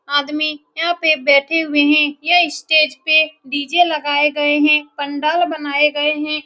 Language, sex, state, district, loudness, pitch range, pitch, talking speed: Hindi, female, Bihar, Saran, -15 LUFS, 290-315 Hz, 300 Hz, 165 wpm